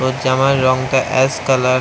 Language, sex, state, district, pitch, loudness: Bengali, male, West Bengal, Kolkata, 130 Hz, -15 LUFS